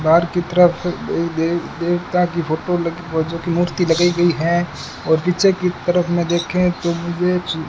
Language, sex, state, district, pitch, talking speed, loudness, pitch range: Hindi, male, Rajasthan, Bikaner, 175 Hz, 185 wpm, -18 LUFS, 170-180 Hz